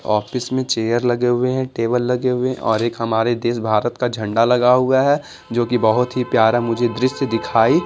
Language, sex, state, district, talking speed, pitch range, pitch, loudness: Hindi, male, Bihar, Patna, 215 wpm, 115-125 Hz, 120 Hz, -18 LUFS